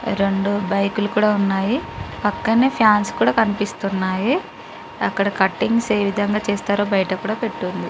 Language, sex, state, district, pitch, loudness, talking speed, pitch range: Telugu, female, Andhra Pradesh, Guntur, 205 Hz, -19 LUFS, 120 wpm, 195-220 Hz